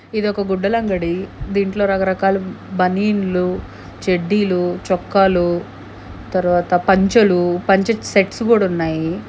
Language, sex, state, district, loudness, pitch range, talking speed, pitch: Telugu, female, Andhra Pradesh, Guntur, -17 LUFS, 175-200 Hz, 85 wpm, 190 Hz